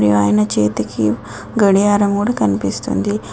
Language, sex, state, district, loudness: Telugu, female, Telangana, Adilabad, -16 LUFS